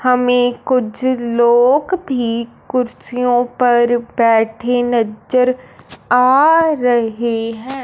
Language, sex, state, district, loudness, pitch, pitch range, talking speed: Hindi, male, Punjab, Fazilka, -15 LUFS, 245 Hz, 235-255 Hz, 85 wpm